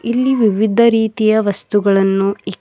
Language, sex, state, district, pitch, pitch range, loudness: Kannada, female, Karnataka, Bidar, 215 Hz, 200-225 Hz, -14 LUFS